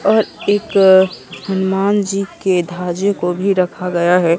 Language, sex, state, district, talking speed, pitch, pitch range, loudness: Hindi, male, Bihar, Katihar, 150 wpm, 190 Hz, 180-200 Hz, -15 LUFS